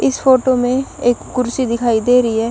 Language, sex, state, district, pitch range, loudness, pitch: Hindi, female, Punjab, Kapurthala, 235-255 Hz, -15 LUFS, 245 Hz